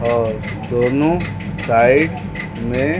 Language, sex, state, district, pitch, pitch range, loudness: Hindi, male, Bihar, West Champaran, 120 Hz, 110-135 Hz, -18 LUFS